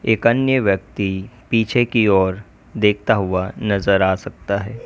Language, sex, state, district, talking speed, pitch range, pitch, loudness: Hindi, male, Uttar Pradesh, Lalitpur, 150 wpm, 95-115 Hz, 100 Hz, -18 LUFS